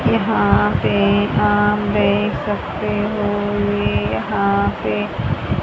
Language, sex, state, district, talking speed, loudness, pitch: Hindi, male, Haryana, Rohtak, 105 wpm, -18 LUFS, 200 Hz